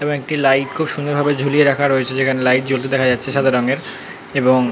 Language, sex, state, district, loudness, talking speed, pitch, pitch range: Bengali, male, West Bengal, North 24 Parganas, -17 LUFS, 230 wpm, 135 Hz, 130-145 Hz